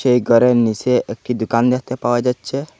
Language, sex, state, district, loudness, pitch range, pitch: Bengali, male, Assam, Hailakandi, -17 LUFS, 120-125 Hz, 125 Hz